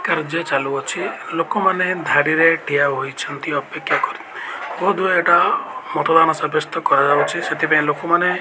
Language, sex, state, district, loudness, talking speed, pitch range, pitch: Odia, male, Odisha, Malkangiri, -18 LUFS, 135 wpm, 145-170 Hz, 160 Hz